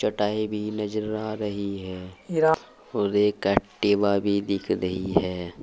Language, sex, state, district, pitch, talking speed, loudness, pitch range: Hindi, male, Uttar Pradesh, Saharanpur, 100 Hz, 130 wpm, -25 LUFS, 95-105 Hz